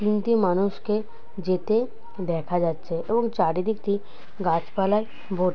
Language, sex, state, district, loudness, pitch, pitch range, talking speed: Bengali, male, West Bengal, Purulia, -25 LUFS, 200 Hz, 180-220 Hz, 95 wpm